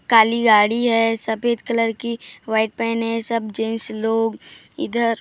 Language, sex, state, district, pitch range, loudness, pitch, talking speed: Hindi, female, Maharashtra, Gondia, 220-230 Hz, -20 LUFS, 225 Hz, 150 wpm